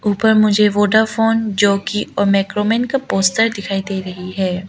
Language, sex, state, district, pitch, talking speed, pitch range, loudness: Hindi, female, Arunachal Pradesh, Lower Dibang Valley, 205 Hz, 155 wpm, 195-220 Hz, -16 LUFS